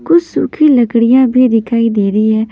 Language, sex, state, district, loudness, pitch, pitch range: Hindi, female, Maharashtra, Mumbai Suburban, -11 LUFS, 235 Hz, 220-255 Hz